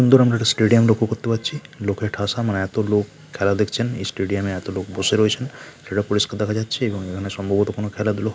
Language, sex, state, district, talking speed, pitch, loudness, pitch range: Bengali, male, West Bengal, North 24 Parganas, 195 wpm, 105 Hz, -21 LUFS, 100-115 Hz